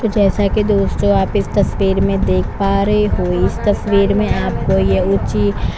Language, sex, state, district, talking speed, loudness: Hindi, female, Chhattisgarh, Korba, 195 wpm, -15 LUFS